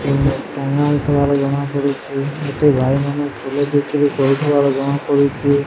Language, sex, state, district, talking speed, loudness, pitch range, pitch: Odia, male, Odisha, Sambalpur, 75 wpm, -17 LUFS, 140-145 Hz, 140 Hz